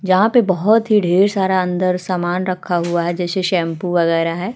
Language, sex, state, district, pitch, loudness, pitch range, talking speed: Hindi, female, Uttar Pradesh, Jalaun, 185 Hz, -17 LUFS, 175-190 Hz, 195 wpm